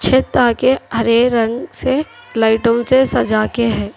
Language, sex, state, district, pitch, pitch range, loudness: Hindi, female, Telangana, Hyderabad, 235 Hz, 220-260 Hz, -15 LUFS